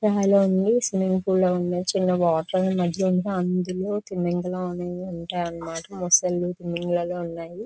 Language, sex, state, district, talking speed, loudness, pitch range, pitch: Telugu, female, Andhra Pradesh, Chittoor, 110 wpm, -24 LUFS, 175-190 Hz, 180 Hz